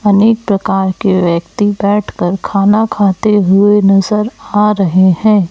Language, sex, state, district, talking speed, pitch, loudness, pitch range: Hindi, male, Chhattisgarh, Raipur, 130 wpm, 205 Hz, -11 LUFS, 190-210 Hz